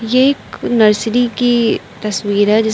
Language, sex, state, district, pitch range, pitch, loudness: Hindi, female, Uttar Pradesh, Lucknow, 210-245 Hz, 225 Hz, -14 LUFS